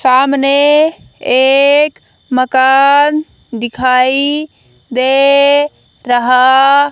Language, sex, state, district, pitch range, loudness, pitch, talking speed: Hindi, female, Haryana, Jhajjar, 255-285 Hz, -10 LUFS, 270 Hz, 50 wpm